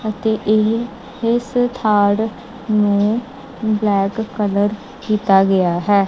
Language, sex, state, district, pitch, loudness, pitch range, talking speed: Punjabi, male, Punjab, Kapurthala, 215 Hz, -17 LUFS, 205-235 Hz, 100 wpm